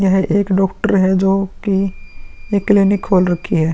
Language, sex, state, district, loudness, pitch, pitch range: Hindi, male, Uttar Pradesh, Muzaffarnagar, -16 LUFS, 195 Hz, 190-200 Hz